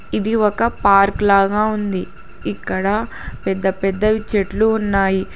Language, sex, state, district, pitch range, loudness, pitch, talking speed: Telugu, female, Telangana, Hyderabad, 195-215 Hz, -18 LUFS, 205 Hz, 100 wpm